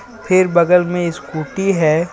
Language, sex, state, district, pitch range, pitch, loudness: Hindi, male, Jharkhand, Ranchi, 160-185 Hz, 175 Hz, -16 LUFS